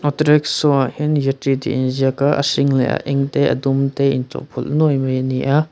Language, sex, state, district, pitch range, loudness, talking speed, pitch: Mizo, male, Mizoram, Aizawl, 135-145 Hz, -17 LUFS, 260 wpm, 140 Hz